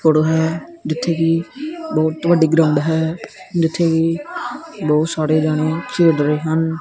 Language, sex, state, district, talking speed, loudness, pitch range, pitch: Punjabi, male, Punjab, Kapurthala, 130 wpm, -18 LUFS, 155-170 Hz, 160 Hz